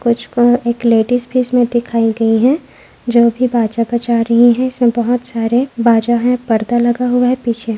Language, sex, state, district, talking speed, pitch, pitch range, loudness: Hindi, female, Maharashtra, Aurangabad, 210 wpm, 240 Hz, 235-245 Hz, -14 LUFS